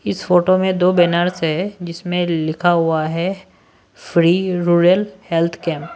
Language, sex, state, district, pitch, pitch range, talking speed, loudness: Hindi, male, Maharashtra, Washim, 175 Hz, 165-185 Hz, 150 wpm, -17 LUFS